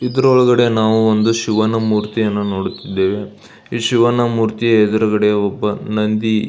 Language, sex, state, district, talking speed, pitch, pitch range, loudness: Kannada, male, Karnataka, Belgaum, 120 wpm, 110 Hz, 105-115 Hz, -15 LUFS